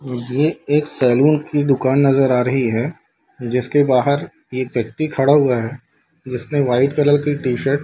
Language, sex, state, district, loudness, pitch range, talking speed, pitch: Hindi, male, Bihar, Darbhanga, -17 LUFS, 125-145 Hz, 170 wpm, 135 Hz